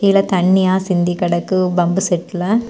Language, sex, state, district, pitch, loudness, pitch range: Tamil, female, Tamil Nadu, Kanyakumari, 185 Hz, -16 LUFS, 175-190 Hz